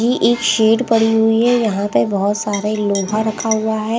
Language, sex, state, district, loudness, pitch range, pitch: Hindi, female, Punjab, Pathankot, -16 LUFS, 205-225 Hz, 220 Hz